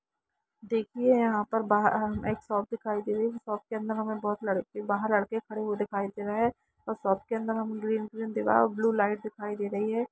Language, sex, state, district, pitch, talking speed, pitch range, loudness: Hindi, female, Jharkhand, Jamtara, 215 Hz, 200 wpm, 205-225 Hz, -30 LUFS